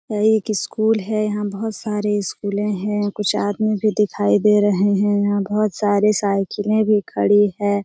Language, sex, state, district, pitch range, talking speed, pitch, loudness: Hindi, female, Bihar, Jamui, 205-215 Hz, 185 wpm, 205 Hz, -19 LUFS